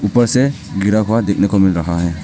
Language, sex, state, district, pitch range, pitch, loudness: Hindi, male, Arunachal Pradesh, Papum Pare, 95-115 Hz, 100 Hz, -15 LUFS